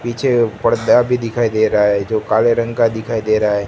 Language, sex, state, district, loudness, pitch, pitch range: Hindi, male, Gujarat, Gandhinagar, -16 LUFS, 115 Hz, 110-120 Hz